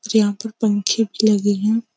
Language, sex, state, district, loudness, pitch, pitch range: Hindi, female, Uttar Pradesh, Jyotiba Phule Nagar, -19 LUFS, 215 Hz, 205-225 Hz